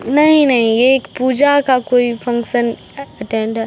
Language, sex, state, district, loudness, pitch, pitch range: Hindi, male, Bihar, Samastipur, -14 LUFS, 250 Hz, 235-275 Hz